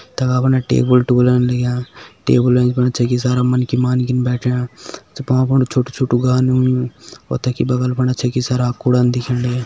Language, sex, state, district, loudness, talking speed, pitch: Hindi, male, Uttarakhand, Tehri Garhwal, -16 LUFS, 160 wpm, 125 Hz